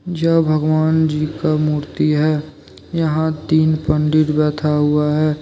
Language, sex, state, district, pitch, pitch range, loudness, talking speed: Hindi, male, Jharkhand, Deoghar, 155 Hz, 150-155 Hz, -17 LUFS, 130 wpm